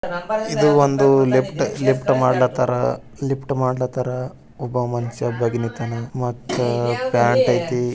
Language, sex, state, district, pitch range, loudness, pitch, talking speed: Kannada, male, Karnataka, Bijapur, 120-135 Hz, -20 LUFS, 125 Hz, 120 wpm